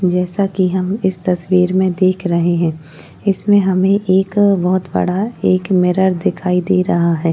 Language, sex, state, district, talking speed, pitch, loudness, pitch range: Hindi, female, Uttar Pradesh, Jyotiba Phule Nagar, 165 wpm, 185 Hz, -15 LUFS, 180-190 Hz